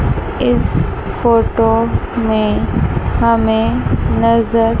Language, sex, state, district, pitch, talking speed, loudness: Hindi, male, Chandigarh, Chandigarh, 215 Hz, 60 wpm, -15 LUFS